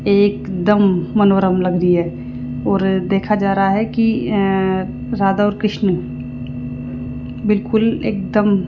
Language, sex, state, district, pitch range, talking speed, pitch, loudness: Hindi, female, Rajasthan, Jaipur, 175-205 Hz, 125 wpm, 195 Hz, -17 LUFS